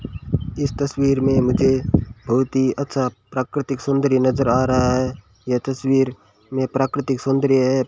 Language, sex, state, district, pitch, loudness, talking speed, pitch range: Hindi, male, Rajasthan, Bikaner, 130 Hz, -20 LUFS, 145 wpm, 125-135 Hz